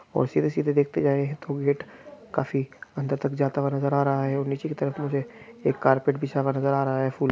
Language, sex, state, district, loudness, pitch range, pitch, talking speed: Hindi, male, Chhattisgarh, Raigarh, -26 LUFS, 135-145 Hz, 140 Hz, 245 wpm